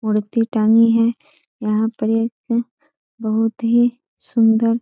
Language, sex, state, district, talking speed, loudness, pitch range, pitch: Hindi, female, Bihar, Sitamarhi, 125 wpm, -18 LUFS, 225-240 Hz, 230 Hz